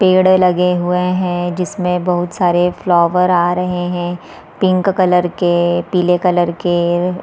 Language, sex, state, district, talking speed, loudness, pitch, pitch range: Hindi, female, Chhattisgarh, Balrampur, 140 wpm, -15 LUFS, 180 Hz, 175-180 Hz